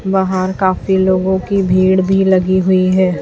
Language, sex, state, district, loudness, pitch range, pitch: Hindi, female, Chhattisgarh, Raipur, -13 LUFS, 185-190 Hz, 185 Hz